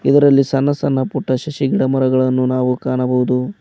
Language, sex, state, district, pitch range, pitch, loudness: Kannada, male, Karnataka, Koppal, 130-140 Hz, 130 Hz, -16 LUFS